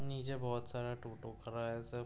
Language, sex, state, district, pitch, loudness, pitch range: Hindi, male, Uttar Pradesh, Budaun, 120 Hz, -43 LUFS, 115-125 Hz